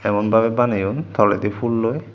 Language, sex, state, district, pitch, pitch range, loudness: Chakma, male, Tripura, Dhalai, 115 Hz, 105-120 Hz, -19 LUFS